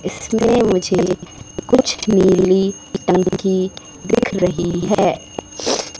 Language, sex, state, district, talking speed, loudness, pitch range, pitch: Hindi, female, Madhya Pradesh, Katni, 80 wpm, -17 LUFS, 180-205 Hz, 190 Hz